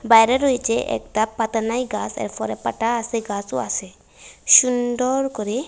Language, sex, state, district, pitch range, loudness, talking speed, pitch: Bengali, female, Tripura, West Tripura, 225-250 Hz, -20 LUFS, 135 wpm, 230 Hz